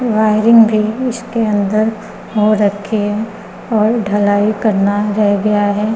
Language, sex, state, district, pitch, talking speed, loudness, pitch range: Hindi, female, Uttar Pradesh, Gorakhpur, 215 Hz, 130 wpm, -14 LUFS, 205-220 Hz